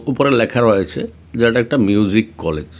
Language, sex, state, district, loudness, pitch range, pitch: Bengali, male, Tripura, West Tripura, -16 LUFS, 85-115 Hz, 105 Hz